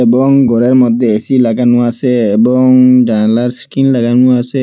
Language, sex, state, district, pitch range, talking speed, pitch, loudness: Bengali, male, Assam, Hailakandi, 120-130 Hz, 140 wpm, 125 Hz, -10 LUFS